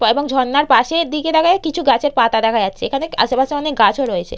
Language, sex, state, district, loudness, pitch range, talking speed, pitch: Bengali, female, West Bengal, Purulia, -16 LUFS, 255-320 Hz, 205 wpm, 290 Hz